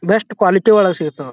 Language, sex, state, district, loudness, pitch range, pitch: Kannada, male, Karnataka, Bijapur, -14 LUFS, 155-215 Hz, 195 Hz